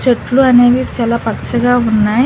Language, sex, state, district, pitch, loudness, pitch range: Telugu, female, Telangana, Hyderabad, 245 Hz, -12 LUFS, 230-250 Hz